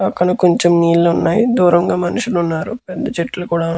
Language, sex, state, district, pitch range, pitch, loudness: Telugu, male, Andhra Pradesh, Guntur, 170-190 Hz, 175 Hz, -15 LUFS